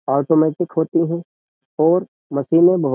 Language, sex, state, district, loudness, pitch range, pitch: Hindi, male, Uttar Pradesh, Jyotiba Phule Nagar, -18 LUFS, 140-170 Hz, 160 Hz